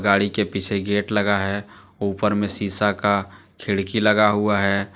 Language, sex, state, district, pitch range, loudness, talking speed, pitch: Hindi, male, Jharkhand, Deoghar, 100-105 Hz, -21 LUFS, 170 wpm, 100 Hz